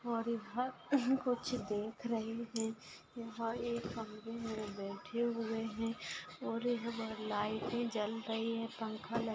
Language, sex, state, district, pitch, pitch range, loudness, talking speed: Hindi, female, Maharashtra, Nagpur, 230 Hz, 220-235 Hz, -39 LUFS, 130 wpm